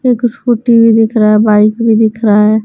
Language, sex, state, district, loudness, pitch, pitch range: Hindi, female, Bihar, West Champaran, -9 LUFS, 225 Hz, 215-235 Hz